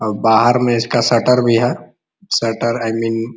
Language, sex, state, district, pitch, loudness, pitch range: Hindi, male, Uttar Pradesh, Ghazipur, 115 Hz, -15 LUFS, 115-120 Hz